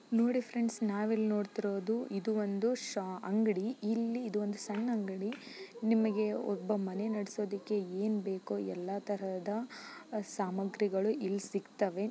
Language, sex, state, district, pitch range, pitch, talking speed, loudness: Kannada, female, Karnataka, Gulbarga, 200-225 Hz, 210 Hz, 120 wpm, -35 LUFS